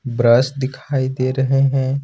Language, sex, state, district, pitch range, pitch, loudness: Hindi, male, Jharkhand, Ranchi, 130-135 Hz, 130 Hz, -17 LUFS